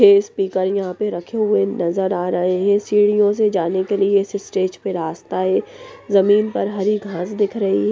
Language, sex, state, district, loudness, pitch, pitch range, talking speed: Hindi, female, Punjab, Pathankot, -19 LUFS, 200 Hz, 185-210 Hz, 210 wpm